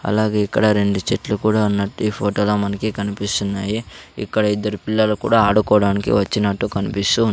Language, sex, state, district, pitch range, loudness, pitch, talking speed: Telugu, male, Andhra Pradesh, Sri Satya Sai, 100-110 Hz, -19 LUFS, 105 Hz, 165 wpm